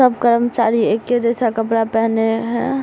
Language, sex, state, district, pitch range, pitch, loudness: Hindi, female, Bihar, Samastipur, 225-240 Hz, 235 Hz, -17 LUFS